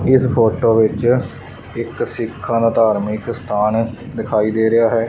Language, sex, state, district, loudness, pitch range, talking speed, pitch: Punjabi, male, Punjab, Fazilka, -17 LUFS, 110-120 Hz, 140 wpm, 115 Hz